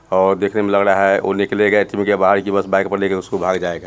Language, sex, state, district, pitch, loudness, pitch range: Hindi, male, Bihar, Muzaffarpur, 100 Hz, -16 LUFS, 95-100 Hz